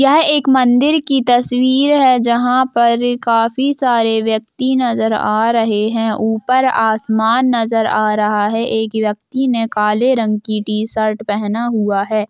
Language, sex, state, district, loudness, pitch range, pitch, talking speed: Hindi, female, Bihar, Gopalganj, -15 LUFS, 220-255 Hz, 230 Hz, 150 wpm